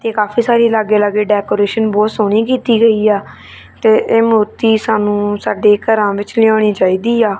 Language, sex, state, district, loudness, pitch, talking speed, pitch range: Punjabi, female, Punjab, Kapurthala, -13 LUFS, 215 Hz, 170 wpm, 205-225 Hz